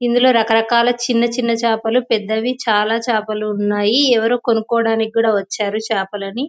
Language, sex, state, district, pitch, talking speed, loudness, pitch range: Telugu, female, Telangana, Nalgonda, 225 Hz, 130 wpm, -17 LUFS, 215-240 Hz